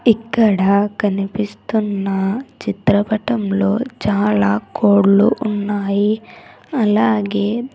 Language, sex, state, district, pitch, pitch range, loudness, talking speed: Telugu, female, Andhra Pradesh, Sri Satya Sai, 205 Hz, 200-220 Hz, -17 LUFS, 55 wpm